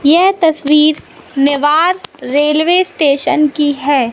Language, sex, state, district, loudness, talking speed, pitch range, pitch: Hindi, female, Madhya Pradesh, Katni, -12 LUFS, 100 wpm, 285-325 Hz, 300 Hz